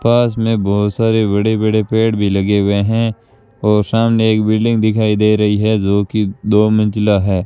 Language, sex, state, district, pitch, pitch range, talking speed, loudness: Hindi, male, Rajasthan, Bikaner, 110 Hz, 105-110 Hz, 195 wpm, -14 LUFS